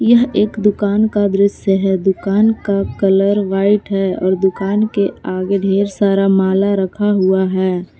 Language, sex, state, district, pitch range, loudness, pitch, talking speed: Hindi, female, Jharkhand, Palamu, 190-205 Hz, -15 LUFS, 195 Hz, 155 wpm